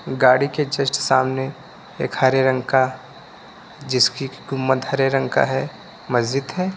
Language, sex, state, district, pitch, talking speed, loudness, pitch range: Hindi, male, Uttar Pradesh, Lucknow, 135 Hz, 140 wpm, -20 LUFS, 130-140 Hz